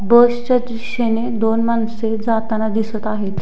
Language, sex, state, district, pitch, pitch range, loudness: Marathi, female, Maharashtra, Dhule, 225 Hz, 220-235 Hz, -18 LUFS